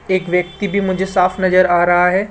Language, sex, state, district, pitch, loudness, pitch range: Hindi, male, Rajasthan, Jaipur, 185 Hz, -15 LUFS, 180-190 Hz